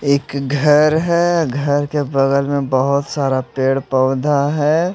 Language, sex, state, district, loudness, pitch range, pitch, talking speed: Hindi, male, Odisha, Malkangiri, -16 LUFS, 135-150 Hz, 140 Hz, 145 wpm